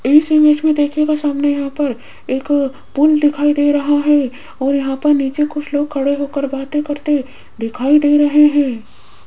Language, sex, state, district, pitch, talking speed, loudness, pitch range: Hindi, female, Rajasthan, Jaipur, 290 Hz, 175 wpm, -15 LUFS, 275-295 Hz